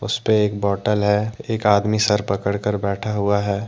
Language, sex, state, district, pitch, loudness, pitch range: Hindi, male, Jharkhand, Deoghar, 105 Hz, -20 LUFS, 100-105 Hz